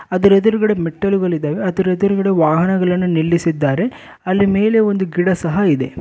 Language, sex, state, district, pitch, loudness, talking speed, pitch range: Kannada, male, Karnataka, Bellary, 185 Hz, -16 LUFS, 140 wpm, 170-200 Hz